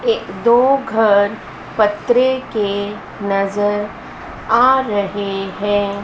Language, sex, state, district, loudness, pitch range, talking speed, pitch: Hindi, female, Madhya Pradesh, Dhar, -16 LUFS, 200-240 Hz, 90 wpm, 205 Hz